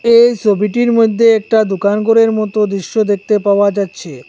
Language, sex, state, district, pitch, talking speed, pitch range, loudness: Bengali, male, Assam, Hailakandi, 215 Hz, 155 wpm, 200-225 Hz, -13 LUFS